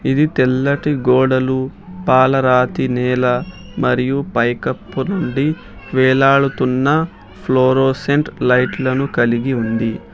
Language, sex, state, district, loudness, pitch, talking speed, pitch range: Telugu, male, Telangana, Hyderabad, -16 LUFS, 130 Hz, 75 wpm, 125-140 Hz